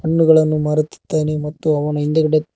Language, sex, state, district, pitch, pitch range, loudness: Kannada, male, Karnataka, Koppal, 155 Hz, 150-160 Hz, -17 LUFS